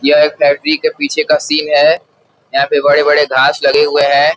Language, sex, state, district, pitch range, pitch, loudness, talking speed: Hindi, male, Uttar Pradesh, Gorakhpur, 145-155 Hz, 150 Hz, -11 LUFS, 205 wpm